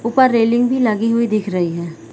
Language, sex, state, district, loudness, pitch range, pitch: Hindi, female, Chhattisgarh, Bilaspur, -16 LUFS, 180-235 Hz, 225 Hz